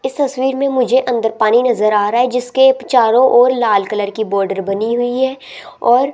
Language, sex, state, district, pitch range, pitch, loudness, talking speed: Hindi, female, Rajasthan, Jaipur, 220-260 Hz, 245 Hz, -14 LUFS, 215 wpm